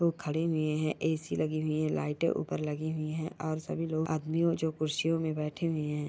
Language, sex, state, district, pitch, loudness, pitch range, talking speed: Hindi, female, Bihar, Jamui, 155 Hz, -32 LUFS, 155-160 Hz, 225 wpm